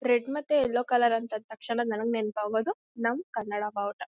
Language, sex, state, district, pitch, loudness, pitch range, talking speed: Kannada, female, Karnataka, Mysore, 230 Hz, -29 LUFS, 215-245 Hz, 175 wpm